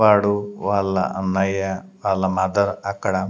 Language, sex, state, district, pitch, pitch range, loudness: Telugu, male, Andhra Pradesh, Sri Satya Sai, 95 Hz, 95-100 Hz, -21 LUFS